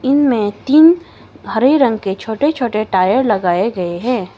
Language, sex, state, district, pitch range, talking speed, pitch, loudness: Hindi, female, Arunachal Pradesh, Longding, 195-270 Hz, 150 wpm, 230 Hz, -14 LUFS